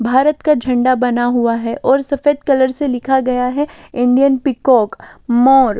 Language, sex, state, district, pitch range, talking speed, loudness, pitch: Hindi, female, Delhi, New Delhi, 245-275 Hz, 165 wpm, -14 LUFS, 260 Hz